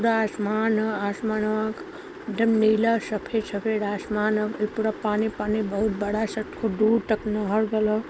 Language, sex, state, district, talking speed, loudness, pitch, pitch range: Hindi, female, Uttar Pradesh, Varanasi, 180 wpm, -25 LUFS, 215 Hz, 210-220 Hz